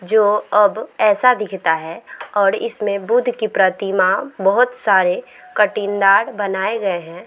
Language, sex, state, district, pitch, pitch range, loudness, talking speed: Hindi, female, Bihar, Vaishali, 200 Hz, 190-215 Hz, -17 LUFS, 130 wpm